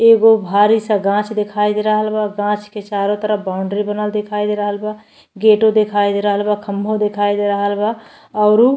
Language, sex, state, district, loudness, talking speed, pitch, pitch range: Bhojpuri, female, Uttar Pradesh, Deoria, -16 LUFS, 205 wpm, 210 Hz, 205-215 Hz